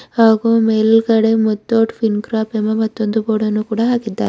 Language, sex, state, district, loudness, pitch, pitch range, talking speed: Kannada, female, Karnataka, Bidar, -15 LUFS, 220 Hz, 215-225 Hz, 155 wpm